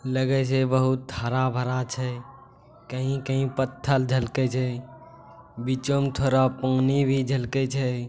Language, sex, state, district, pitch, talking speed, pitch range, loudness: Angika, male, Bihar, Bhagalpur, 130 Hz, 120 wpm, 130-135 Hz, -25 LUFS